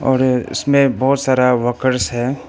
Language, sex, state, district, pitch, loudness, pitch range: Hindi, male, Arunachal Pradesh, Papum Pare, 130 Hz, -16 LUFS, 125-135 Hz